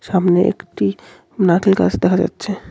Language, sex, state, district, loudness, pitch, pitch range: Bengali, male, West Bengal, Cooch Behar, -17 LUFS, 180 Hz, 175-195 Hz